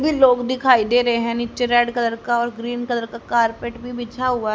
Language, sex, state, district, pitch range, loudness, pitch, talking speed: Hindi, female, Haryana, Charkhi Dadri, 235-245 Hz, -20 LUFS, 240 Hz, 225 wpm